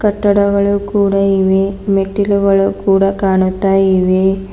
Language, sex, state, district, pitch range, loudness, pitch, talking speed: Kannada, female, Karnataka, Bidar, 195-200 Hz, -13 LUFS, 195 Hz, 95 wpm